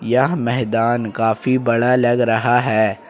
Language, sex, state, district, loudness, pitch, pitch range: Hindi, male, Jharkhand, Ranchi, -17 LUFS, 120 Hz, 115-125 Hz